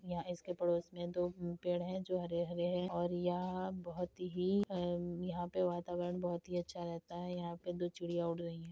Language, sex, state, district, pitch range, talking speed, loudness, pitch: Hindi, female, Uttar Pradesh, Deoria, 175-180 Hz, 205 wpm, -40 LUFS, 175 Hz